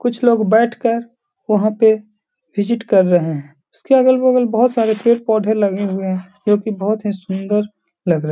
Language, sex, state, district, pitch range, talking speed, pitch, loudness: Hindi, male, Bihar, Gaya, 200-235 Hz, 190 wpm, 215 Hz, -16 LUFS